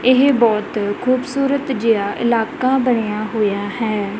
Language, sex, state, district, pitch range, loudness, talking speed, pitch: Punjabi, female, Punjab, Kapurthala, 210-255 Hz, -18 LUFS, 115 wpm, 230 Hz